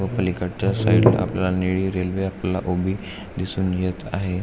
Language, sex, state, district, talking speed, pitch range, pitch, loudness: Marathi, male, Maharashtra, Aurangabad, 135 wpm, 90-95 Hz, 95 Hz, -22 LUFS